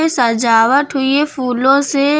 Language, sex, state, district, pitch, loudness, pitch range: Hindi, female, Uttar Pradesh, Lucknow, 270 Hz, -13 LUFS, 245-290 Hz